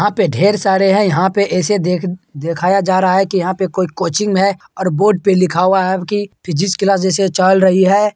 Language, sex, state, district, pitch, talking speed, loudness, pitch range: Hindi, male, Bihar, Purnia, 190 Hz, 245 wpm, -14 LUFS, 185-195 Hz